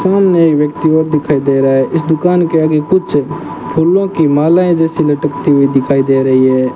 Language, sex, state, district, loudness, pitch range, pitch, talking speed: Hindi, male, Rajasthan, Bikaner, -11 LUFS, 140-165 Hz, 155 Hz, 205 wpm